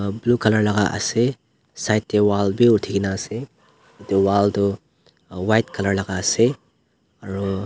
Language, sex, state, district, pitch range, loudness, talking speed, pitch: Nagamese, male, Nagaland, Dimapur, 100-110 Hz, -20 LUFS, 125 wpm, 100 Hz